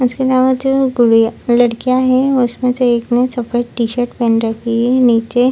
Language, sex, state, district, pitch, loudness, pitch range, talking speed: Hindi, female, Bihar, Lakhisarai, 245 Hz, -14 LUFS, 235-255 Hz, 185 wpm